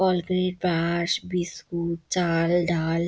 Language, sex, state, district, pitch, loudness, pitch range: Bengali, female, West Bengal, Dakshin Dinajpur, 175 Hz, -25 LUFS, 170-180 Hz